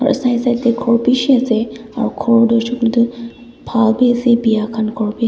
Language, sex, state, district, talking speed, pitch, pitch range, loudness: Nagamese, female, Nagaland, Dimapur, 205 wpm, 235 Hz, 230-245 Hz, -15 LUFS